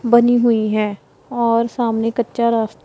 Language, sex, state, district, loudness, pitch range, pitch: Hindi, female, Punjab, Pathankot, -17 LUFS, 225-240 Hz, 230 Hz